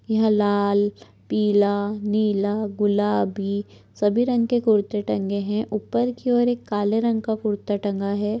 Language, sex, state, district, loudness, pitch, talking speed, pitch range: Marathi, male, Maharashtra, Sindhudurg, -22 LUFS, 210 Hz, 150 wpm, 205-220 Hz